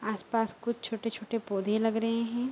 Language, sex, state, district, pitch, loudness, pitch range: Hindi, female, Bihar, Araria, 225 Hz, -31 LUFS, 220-230 Hz